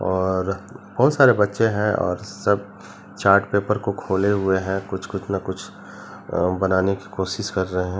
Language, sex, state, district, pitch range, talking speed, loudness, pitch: Hindi, male, Chhattisgarh, Bilaspur, 95-105 Hz, 180 wpm, -21 LUFS, 95 Hz